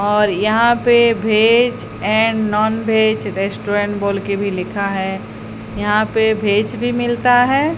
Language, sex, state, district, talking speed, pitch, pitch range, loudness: Hindi, female, Odisha, Sambalpur, 145 wpm, 215 Hz, 200-230 Hz, -16 LUFS